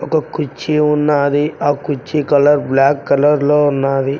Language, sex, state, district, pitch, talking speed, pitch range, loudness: Telugu, male, Telangana, Mahabubabad, 145 Hz, 145 wpm, 140-150 Hz, -14 LUFS